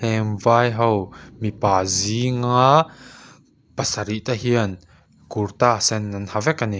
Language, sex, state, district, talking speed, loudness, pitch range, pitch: Mizo, male, Mizoram, Aizawl, 125 wpm, -20 LUFS, 100-120 Hz, 110 Hz